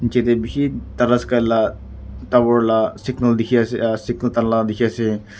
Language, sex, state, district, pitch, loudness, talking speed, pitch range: Nagamese, male, Nagaland, Kohima, 115 Hz, -18 LUFS, 155 wpm, 110-120 Hz